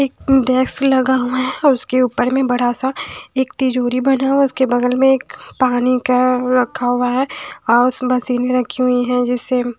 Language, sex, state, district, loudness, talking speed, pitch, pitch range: Hindi, female, Bihar, West Champaran, -16 LUFS, 195 wpm, 255 Hz, 245-265 Hz